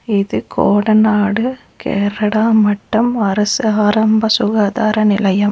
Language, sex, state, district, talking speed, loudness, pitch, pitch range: Tamil, female, Tamil Nadu, Nilgiris, 85 wpm, -14 LUFS, 215 Hz, 205-220 Hz